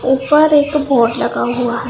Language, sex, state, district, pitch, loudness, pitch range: Hindi, female, Punjab, Pathankot, 265 Hz, -14 LUFS, 245-295 Hz